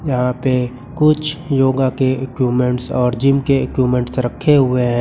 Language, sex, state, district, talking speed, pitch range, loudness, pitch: Hindi, male, Uttar Pradesh, Lucknow, 155 wpm, 125-135 Hz, -16 LUFS, 130 Hz